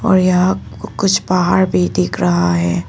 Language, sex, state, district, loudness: Hindi, female, Arunachal Pradesh, Papum Pare, -15 LUFS